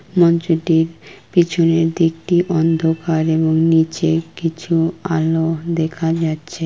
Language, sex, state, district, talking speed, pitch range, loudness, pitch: Bengali, female, West Bengal, Kolkata, 90 wpm, 160-165 Hz, -17 LUFS, 165 Hz